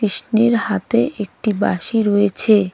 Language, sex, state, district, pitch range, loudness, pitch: Bengali, female, West Bengal, Cooch Behar, 205-225 Hz, -16 LUFS, 210 Hz